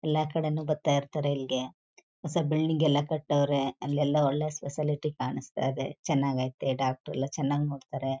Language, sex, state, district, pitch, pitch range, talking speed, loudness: Kannada, female, Karnataka, Chamarajanagar, 145 Hz, 135-155 Hz, 140 wpm, -29 LUFS